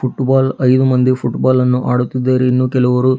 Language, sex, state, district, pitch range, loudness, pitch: Kannada, female, Karnataka, Bidar, 125-130 Hz, -14 LUFS, 130 Hz